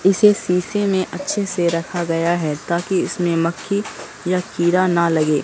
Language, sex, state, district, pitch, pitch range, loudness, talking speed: Hindi, female, Bihar, Katihar, 175 Hz, 170-195 Hz, -19 LUFS, 165 wpm